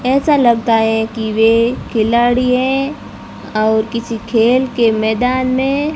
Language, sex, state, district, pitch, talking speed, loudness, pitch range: Hindi, female, Rajasthan, Barmer, 235 Hz, 130 wpm, -14 LUFS, 225-255 Hz